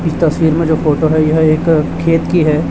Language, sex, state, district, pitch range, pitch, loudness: Hindi, male, Chhattisgarh, Raipur, 155-165 Hz, 160 Hz, -13 LUFS